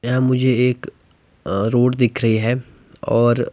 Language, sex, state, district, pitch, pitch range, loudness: Hindi, male, Himachal Pradesh, Shimla, 120 Hz, 115-125 Hz, -18 LUFS